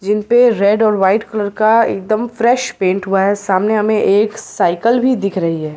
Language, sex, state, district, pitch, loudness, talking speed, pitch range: Hindi, female, Bihar, Katihar, 210 Hz, -14 LUFS, 210 wpm, 195-230 Hz